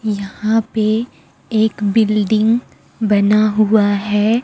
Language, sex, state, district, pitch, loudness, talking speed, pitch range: Hindi, female, Chhattisgarh, Raipur, 215 Hz, -16 LUFS, 95 wpm, 210-220 Hz